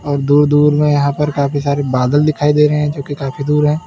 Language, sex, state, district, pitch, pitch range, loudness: Hindi, male, Uttar Pradesh, Lalitpur, 145 Hz, 140-150 Hz, -14 LUFS